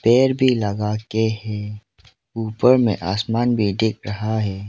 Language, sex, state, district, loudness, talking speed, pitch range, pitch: Hindi, male, Arunachal Pradesh, Lower Dibang Valley, -20 LUFS, 140 wpm, 105-115 Hz, 110 Hz